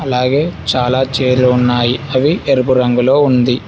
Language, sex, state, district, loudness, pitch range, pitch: Telugu, male, Telangana, Hyderabad, -13 LUFS, 125-135 Hz, 130 Hz